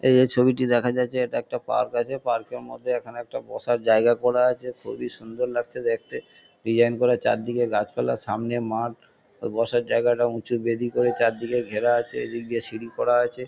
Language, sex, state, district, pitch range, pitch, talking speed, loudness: Bengali, male, West Bengal, Kolkata, 115-125 Hz, 120 Hz, 185 wpm, -24 LUFS